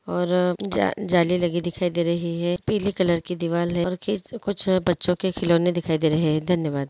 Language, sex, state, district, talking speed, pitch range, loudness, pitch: Hindi, female, Andhra Pradesh, Guntur, 180 wpm, 170-185 Hz, -23 LUFS, 175 Hz